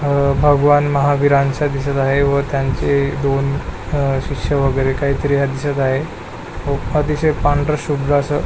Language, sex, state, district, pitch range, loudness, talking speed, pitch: Marathi, male, Maharashtra, Pune, 140-145 Hz, -17 LUFS, 135 wpm, 140 Hz